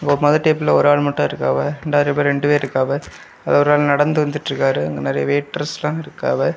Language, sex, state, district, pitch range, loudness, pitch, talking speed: Tamil, male, Tamil Nadu, Kanyakumari, 135-150 Hz, -18 LUFS, 145 Hz, 180 wpm